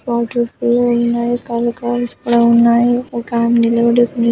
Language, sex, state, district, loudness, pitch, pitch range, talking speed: Telugu, female, Andhra Pradesh, Anantapur, -15 LUFS, 235 Hz, 235-240 Hz, 150 wpm